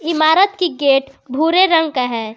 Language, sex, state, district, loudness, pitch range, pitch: Hindi, female, Jharkhand, Garhwa, -15 LUFS, 270-335 Hz, 310 Hz